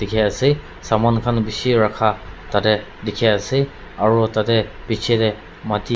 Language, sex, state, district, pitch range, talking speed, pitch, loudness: Nagamese, male, Nagaland, Dimapur, 105-115 Hz, 110 wpm, 110 Hz, -19 LUFS